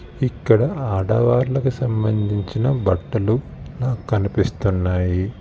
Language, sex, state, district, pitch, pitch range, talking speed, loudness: Telugu, male, Telangana, Hyderabad, 110 Hz, 100-125 Hz, 65 wpm, -20 LUFS